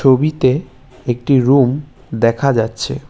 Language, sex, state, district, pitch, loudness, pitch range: Bengali, male, West Bengal, Cooch Behar, 130 Hz, -15 LUFS, 125-140 Hz